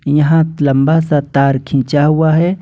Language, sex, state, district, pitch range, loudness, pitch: Hindi, male, Jharkhand, Ranchi, 140-160 Hz, -13 LUFS, 150 Hz